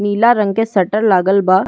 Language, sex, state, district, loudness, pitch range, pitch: Bhojpuri, female, Uttar Pradesh, Ghazipur, -14 LUFS, 190-220 Hz, 205 Hz